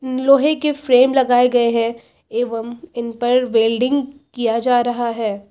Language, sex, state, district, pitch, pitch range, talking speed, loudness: Hindi, female, Uttar Pradesh, Lucknow, 245 Hz, 235-260 Hz, 150 wpm, -17 LUFS